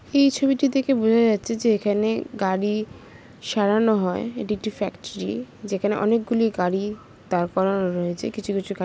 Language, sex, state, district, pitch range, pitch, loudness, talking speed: Bengali, female, West Bengal, Paschim Medinipur, 195-230 Hz, 215 Hz, -23 LUFS, 165 wpm